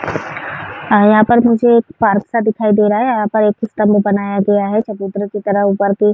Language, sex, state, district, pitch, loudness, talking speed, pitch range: Hindi, female, Uttar Pradesh, Varanasi, 210 Hz, -14 LUFS, 145 wpm, 205-220 Hz